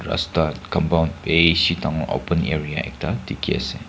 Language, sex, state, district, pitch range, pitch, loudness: Nagamese, male, Nagaland, Kohima, 80-85 Hz, 80 Hz, -21 LUFS